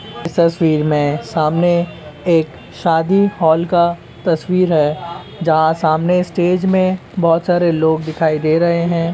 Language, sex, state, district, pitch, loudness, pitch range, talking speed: Hindi, male, Uttar Pradesh, Ghazipur, 165 Hz, -15 LUFS, 160-175 Hz, 145 wpm